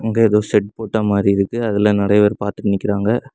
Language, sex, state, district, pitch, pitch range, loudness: Tamil, male, Tamil Nadu, Kanyakumari, 105 Hz, 100-110 Hz, -17 LUFS